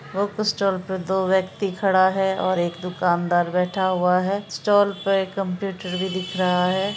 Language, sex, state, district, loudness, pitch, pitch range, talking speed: Hindi, female, Bihar, Araria, -22 LUFS, 190 Hz, 180-195 Hz, 180 wpm